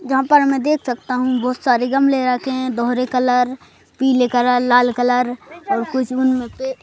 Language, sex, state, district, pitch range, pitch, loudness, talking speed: Hindi, male, Madhya Pradesh, Bhopal, 245-265 Hz, 255 Hz, -17 LUFS, 185 wpm